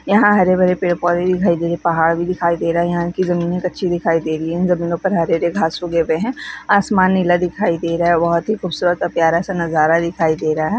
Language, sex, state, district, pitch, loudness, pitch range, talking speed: Hindi, female, Rajasthan, Nagaur, 170 Hz, -17 LUFS, 170-185 Hz, 260 wpm